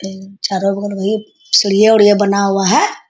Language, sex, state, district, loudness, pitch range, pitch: Hindi, female, Bihar, Bhagalpur, -13 LUFS, 195-205 Hz, 200 Hz